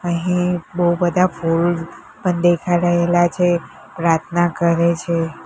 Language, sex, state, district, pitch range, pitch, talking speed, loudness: Gujarati, female, Gujarat, Gandhinagar, 170-175 Hz, 175 Hz, 120 wpm, -18 LUFS